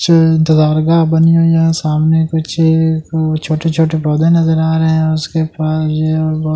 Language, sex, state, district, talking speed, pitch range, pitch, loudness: Hindi, male, Delhi, New Delhi, 130 wpm, 155-160 Hz, 160 Hz, -13 LUFS